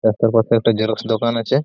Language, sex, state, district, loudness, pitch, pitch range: Bengali, male, West Bengal, Purulia, -17 LUFS, 115 Hz, 110-115 Hz